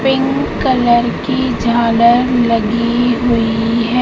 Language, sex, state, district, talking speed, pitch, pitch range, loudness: Hindi, female, Madhya Pradesh, Katni, 105 wpm, 235 Hz, 235-250 Hz, -13 LUFS